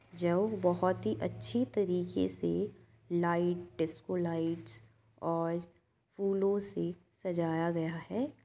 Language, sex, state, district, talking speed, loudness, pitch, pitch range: Hindi, female, Uttar Pradesh, Jyotiba Phule Nagar, 105 wpm, -34 LUFS, 170 Hz, 120-180 Hz